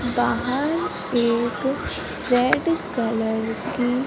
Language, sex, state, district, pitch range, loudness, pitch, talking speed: Hindi, female, Madhya Pradesh, Umaria, 235-270 Hz, -23 LUFS, 245 Hz, 75 wpm